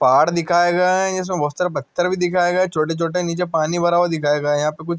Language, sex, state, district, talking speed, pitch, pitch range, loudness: Hindi, male, Andhra Pradesh, Anantapur, 205 wpm, 175 Hz, 160-180 Hz, -19 LUFS